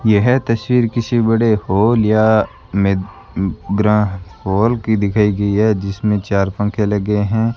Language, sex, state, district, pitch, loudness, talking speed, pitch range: Hindi, male, Rajasthan, Bikaner, 105 Hz, -16 LUFS, 135 wpm, 100-110 Hz